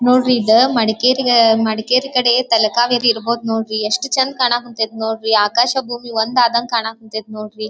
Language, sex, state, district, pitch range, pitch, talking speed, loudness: Kannada, female, Karnataka, Dharwad, 220-245 Hz, 235 Hz, 150 wpm, -15 LUFS